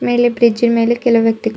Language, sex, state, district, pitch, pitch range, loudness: Kannada, female, Karnataka, Bidar, 235 Hz, 230-240 Hz, -14 LUFS